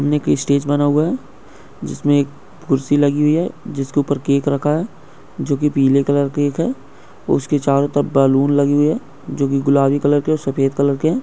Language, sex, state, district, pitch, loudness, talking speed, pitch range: Hindi, male, Karnataka, Bijapur, 140 Hz, -17 LUFS, 210 wpm, 140-145 Hz